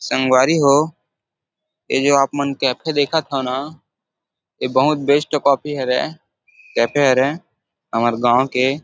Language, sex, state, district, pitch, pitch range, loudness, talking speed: Chhattisgarhi, male, Chhattisgarh, Rajnandgaon, 140 Hz, 130-145 Hz, -18 LUFS, 140 wpm